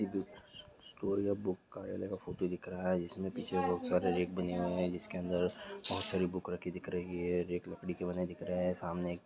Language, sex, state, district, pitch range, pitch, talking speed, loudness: Hindi, male, Bihar, East Champaran, 90-95 Hz, 90 Hz, 235 wpm, -37 LUFS